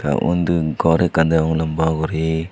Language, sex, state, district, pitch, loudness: Chakma, male, Tripura, Unakoti, 80 Hz, -18 LUFS